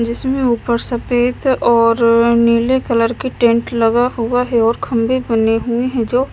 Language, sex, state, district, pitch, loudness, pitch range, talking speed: Hindi, female, Punjab, Kapurthala, 235 Hz, -15 LUFS, 230-250 Hz, 160 wpm